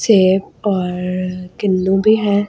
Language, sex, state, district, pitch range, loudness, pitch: Hindi, female, Delhi, New Delhi, 185-205 Hz, -16 LUFS, 190 Hz